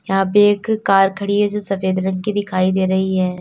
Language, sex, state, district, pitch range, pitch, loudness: Hindi, female, Uttar Pradesh, Lalitpur, 190-205 Hz, 195 Hz, -17 LUFS